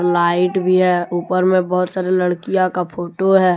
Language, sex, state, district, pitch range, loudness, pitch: Hindi, male, Jharkhand, Deoghar, 175-185 Hz, -17 LUFS, 180 Hz